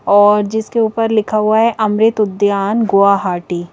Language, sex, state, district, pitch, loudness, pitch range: Hindi, female, Madhya Pradesh, Bhopal, 210 Hz, -14 LUFS, 200-220 Hz